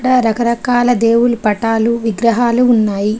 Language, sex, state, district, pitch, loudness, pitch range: Telugu, female, Telangana, Adilabad, 235 Hz, -13 LUFS, 225-245 Hz